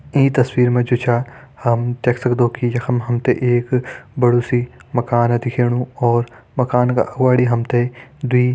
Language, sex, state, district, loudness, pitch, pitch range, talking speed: Hindi, male, Uttarakhand, Tehri Garhwal, -18 LUFS, 125 Hz, 120-125 Hz, 175 wpm